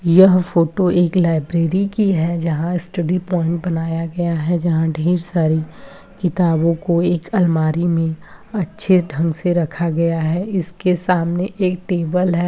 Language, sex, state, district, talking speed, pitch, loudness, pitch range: Hindi, female, Bihar, Begusarai, 150 wpm, 175 Hz, -18 LUFS, 165-180 Hz